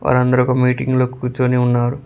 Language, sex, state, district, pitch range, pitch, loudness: Telugu, male, Telangana, Mahabubabad, 125-130 Hz, 125 Hz, -16 LUFS